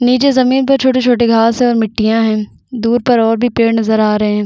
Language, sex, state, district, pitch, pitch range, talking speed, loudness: Hindi, female, Chhattisgarh, Bastar, 230 Hz, 220-250 Hz, 240 wpm, -12 LUFS